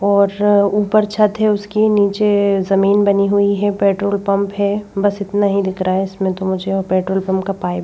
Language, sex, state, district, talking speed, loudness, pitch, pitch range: Hindi, female, Madhya Pradesh, Bhopal, 215 wpm, -16 LUFS, 200 Hz, 195-205 Hz